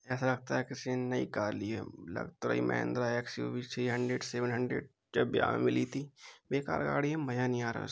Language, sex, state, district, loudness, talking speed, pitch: Hindi, male, Uttar Pradesh, Hamirpur, -34 LUFS, 240 wpm, 125 Hz